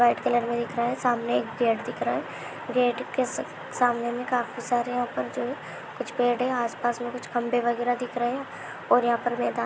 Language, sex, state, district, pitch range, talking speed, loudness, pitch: Hindi, female, Chhattisgarh, Raigarh, 240-245 Hz, 225 wpm, -27 LUFS, 240 Hz